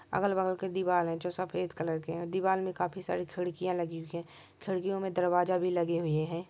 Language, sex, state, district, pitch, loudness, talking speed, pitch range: Maithili, male, Bihar, Supaul, 180 Hz, -32 LUFS, 220 wpm, 170-185 Hz